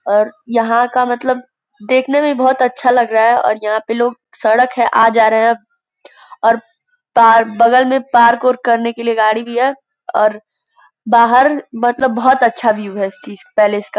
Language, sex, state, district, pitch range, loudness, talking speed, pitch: Hindi, female, Uttar Pradesh, Gorakhpur, 225-255 Hz, -13 LUFS, 190 wpm, 235 Hz